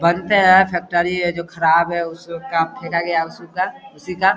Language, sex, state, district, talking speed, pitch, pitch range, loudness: Hindi, male, Bihar, Vaishali, 180 wpm, 170 Hz, 170-180 Hz, -18 LUFS